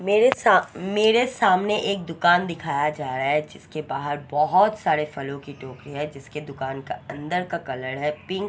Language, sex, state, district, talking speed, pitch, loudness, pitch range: Hindi, female, Odisha, Sambalpur, 175 wpm, 150 Hz, -23 LUFS, 140-185 Hz